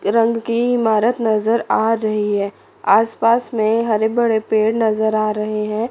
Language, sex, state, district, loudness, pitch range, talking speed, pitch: Hindi, female, Chandigarh, Chandigarh, -17 LUFS, 215-230 Hz, 170 wpm, 220 Hz